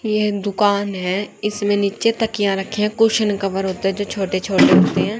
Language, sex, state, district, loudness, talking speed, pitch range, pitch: Hindi, female, Haryana, Jhajjar, -18 LUFS, 205 wpm, 195-210 Hz, 200 Hz